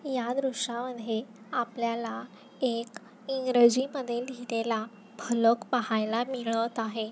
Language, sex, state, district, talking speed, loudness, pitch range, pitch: Marathi, female, Maharashtra, Nagpur, 95 wpm, -29 LUFS, 225-250 Hz, 235 Hz